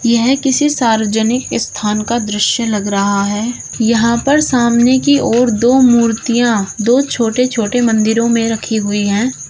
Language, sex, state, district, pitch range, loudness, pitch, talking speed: Hindi, female, Uttar Pradesh, Shamli, 220-250 Hz, -13 LUFS, 235 Hz, 150 wpm